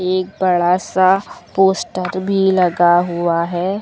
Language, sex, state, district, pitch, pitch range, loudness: Hindi, female, Uttar Pradesh, Lucknow, 185 Hz, 175-190 Hz, -16 LUFS